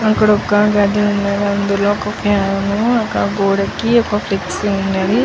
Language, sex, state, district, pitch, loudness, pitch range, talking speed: Telugu, female, Andhra Pradesh, Chittoor, 205 Hz, -15 LUFS, 200-210 Hz, 150 wpm